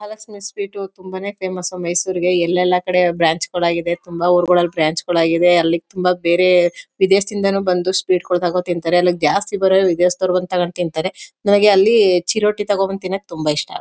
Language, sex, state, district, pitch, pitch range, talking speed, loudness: Kannada, female, Karnataka, Mysore, 180 Hz, 175-195 Hz, 150 wpm, -17 LUFS